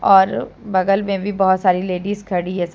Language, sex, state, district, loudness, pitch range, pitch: Hindi, female, Jharkhand, Deoghar, -18 LUFS, 185-195 Hz, 190 Hz